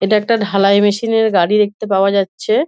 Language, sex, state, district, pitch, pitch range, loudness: Bengali, female, West Bengal, Dakshin Dinajpur, 210 Hz, 200-225 Hz, -14 LUFS